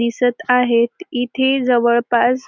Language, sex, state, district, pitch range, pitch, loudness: Marathi, female, Maharashtra, Dhule, 235-260 Hz, 245 Hz, -17 LUFS